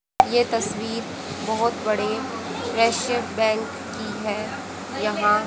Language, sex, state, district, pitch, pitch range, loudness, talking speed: Hindi, female, Haryana, Rohtak, 220 Hz, 210-235 Hz, -24 LUFS, 100 wpm